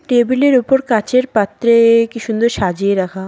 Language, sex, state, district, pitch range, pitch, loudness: Bengali, female, West Bengal, Cooch Behar, 205-250 Hz, 230 Hz, -14 LUFS